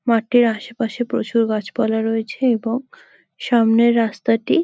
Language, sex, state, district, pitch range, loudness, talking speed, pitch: Bengali, female, West Bengal, Kolkata, 225-240 Hz, -19 LUFS, 115 wpm, 230 Hz